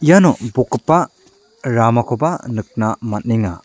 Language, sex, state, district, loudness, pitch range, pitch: Garo, male, Meghalaya, South Garo Hills, -17 LUFS, 110-125 Hz, 120 Hz